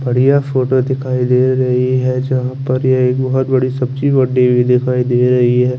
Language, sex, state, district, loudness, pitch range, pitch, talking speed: Hindi, male, Chandigarh, Chandigarh, -14 LUFS, 125-130 Hz, 130 Hz, 185 wpm